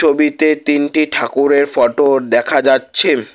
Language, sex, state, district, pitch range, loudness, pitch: Bengali, male, West Bengal, Alipurduar, 135-150 Hz, -13 LUFS, 145 Hz